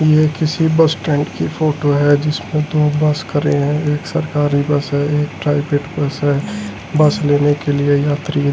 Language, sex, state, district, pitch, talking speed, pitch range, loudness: Hindi, male, Delhi, New Delhi, 145 Hz, 175 wpm, 145-150 Hz, -16 LUFS